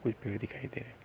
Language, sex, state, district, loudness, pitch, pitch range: Hindi, male, Uttar Pradesh, Gorakhpur, -39 LUFS, 120 Hz, 115-130 Hz